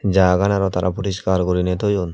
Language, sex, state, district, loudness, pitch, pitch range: Chakma, male, Tripura, Dhalai, -19 LUFS, 95 Hz, 90-100 Hz